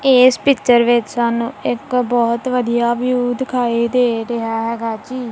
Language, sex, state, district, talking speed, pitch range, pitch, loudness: Punjabi, female, Punjab, Kapurthala, 145 wpm, 235-250 Hz, 240 Hz, -16 LUFS